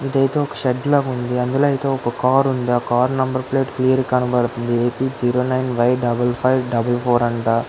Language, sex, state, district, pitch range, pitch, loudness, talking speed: Telugu, female, Andhra Pradesh, Guntur, 120-130 Hz, 125 Hz, -19 LUFS, 205 wpm